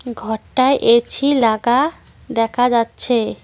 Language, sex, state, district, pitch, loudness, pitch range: Bengali, female, West Bengal, Cooch Behar, 235 Hz, -16 LUFS, 225-255 Hz